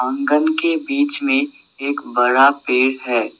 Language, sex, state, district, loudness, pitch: Hindi, male, Assam, Sonitpur, -17 LUFS, 140 Hz